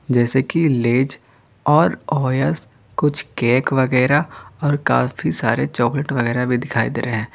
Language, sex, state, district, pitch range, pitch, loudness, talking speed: Hindi, male, Jharkhand, Garhwa, 120-140 Hz, 125 Hz, -19 LUFS, 145 wpm